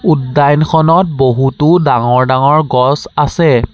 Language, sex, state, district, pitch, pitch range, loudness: Assamese, male, Assam, Sonitpur, 145 Hz, 130-160 Hz, -11 LUFS